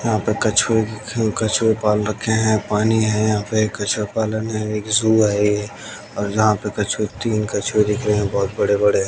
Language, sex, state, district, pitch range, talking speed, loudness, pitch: Hindi, male, Haryana, Jhajjar, 105-110 Hz, 205 wpm, -19 LUFS, 110 Hz